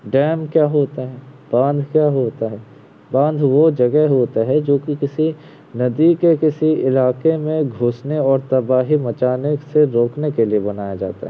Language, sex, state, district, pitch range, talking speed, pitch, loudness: Hindi, male, Uttar Pradesh, Varanasi, 125-150 Hz, 165 wpm, 140 Hz, -17 LUFS